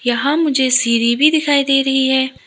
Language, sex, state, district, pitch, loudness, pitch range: Hindi, female, Arunachal Pradesh, Lower Dibang Valley, 265 Hz, -14 LUFS, 255-285 Hz